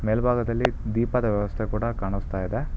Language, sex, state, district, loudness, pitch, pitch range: Kannada, male, Karnataka, Bangalore, -26 LUFS, 110 Hz, 105-120 Hz